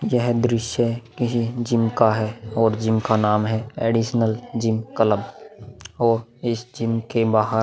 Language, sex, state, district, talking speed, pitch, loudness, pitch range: Hindi, male, Bihar, Vaishali, 150 wpm, 115 Hz, -21 LUFS, 110-120 Hz